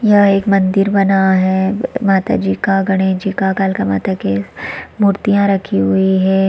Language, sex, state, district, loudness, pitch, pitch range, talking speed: Hindi, female, Chhattisgarh, Rajnandgaon, -14 LUFS, 195 Hz, 190-195 Hz, 165 wpm